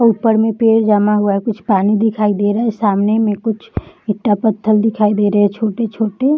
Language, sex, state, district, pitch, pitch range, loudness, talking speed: Hindi, female, Bihar, Saharsa, 215 Hz, 205-225 Hz, -15 LUFS, 255 wpm